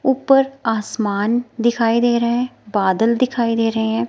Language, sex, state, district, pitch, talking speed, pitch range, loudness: Hindi, female, Himachal Pradesh, Shimla, 235 Hz, 160 wpm, 225-245 Hz, -18 LUFS